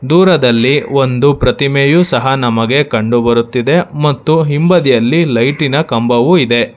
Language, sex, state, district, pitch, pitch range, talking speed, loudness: Kannada, male, Karnataka, Bangalore, 140 Hz, 120-150 Hz, 105 wpm, -11 LUFS